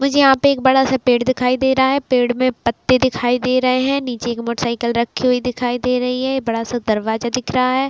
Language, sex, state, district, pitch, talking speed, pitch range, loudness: Hindi, female, Bihar, Saran, 250 Hz, 275 wpm, 240-260 Hz, -17 LUFS